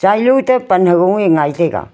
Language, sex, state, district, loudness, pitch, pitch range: Wancho, female, Arunachal Pradesh, Longding, -13 LUFS, 190 Hz, 175-245 Hz